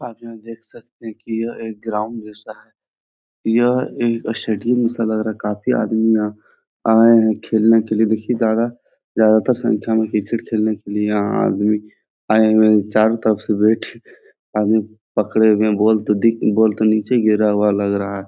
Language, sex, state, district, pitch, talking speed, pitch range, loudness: Hindi, male, Bihar, Jahanabad, 110 Hz, 190 wpm, 105-115 Hz, -17 LUFS